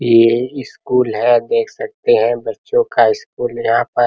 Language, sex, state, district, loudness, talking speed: Hindi, male, Bihar, Araria, -16 LUFS, 190 wpm